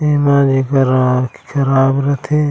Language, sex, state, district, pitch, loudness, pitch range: Chhattisgarhi, male, Chhattisgarh, Raigarh, 135 Hz, -14 LUFS, 135-140 Hz